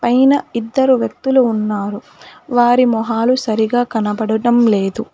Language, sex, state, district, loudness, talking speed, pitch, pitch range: Telugu, female, Telangana, Hyderabad, -15 LUFS, 105 wpm, 235 Hz, 220-255 Hz